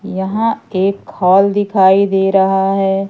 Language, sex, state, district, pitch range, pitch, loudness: Hindi, female, Madhya Pradesh, Umaria, 190-200 Hz, 195 Hz, -13 LUFS